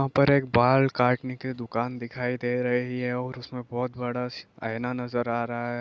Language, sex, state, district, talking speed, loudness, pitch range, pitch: Hindi, male, Bihar, East Champaran, 215 wpm, -27 LUFS, 120-125 Hz, 125 Hz